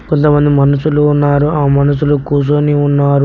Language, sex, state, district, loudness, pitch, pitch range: Telugu, male, Telangana, Mahabubabad, -11 LUFS, 145 Hz, 140-150 Hz